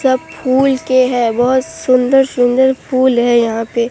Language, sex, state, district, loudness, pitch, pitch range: Hindi, female, Bihar, Katihar, -13 LUFS, 255 Hz, 240-265 Hz